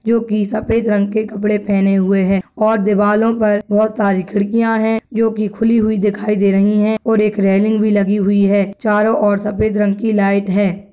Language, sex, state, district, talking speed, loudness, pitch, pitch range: Angika, female, Bihar, Madhepura, 210 wpm, -15 LUFS, 210 Hz, 200-220 Hz